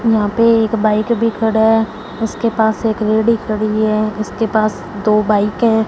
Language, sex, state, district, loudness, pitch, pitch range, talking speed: Hindi, female, Punjab, Fazilka, -15 LUFS, 220 Hz, 215-225 Hz, 185 wpm